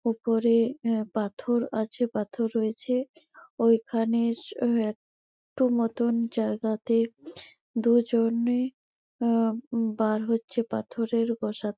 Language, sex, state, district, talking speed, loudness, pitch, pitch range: Bengali, female, West Bengal, Malda, 85 wpm, -27 LUFS, 230 Hz, 225-235 Hz